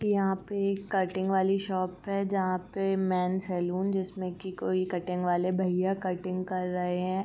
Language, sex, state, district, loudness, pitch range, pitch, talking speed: Hindi, female, Uttar Pradesh, Varanasi, -30 LUFS, 180-195 Hz, 185 Hz, 175 wpm